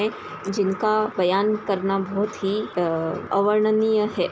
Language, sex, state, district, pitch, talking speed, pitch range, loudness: Hindi, female, Uttar Pradesh, Ghazipur, 200 Hz, 125 wpm, 190-215 Hz, -23 LUFS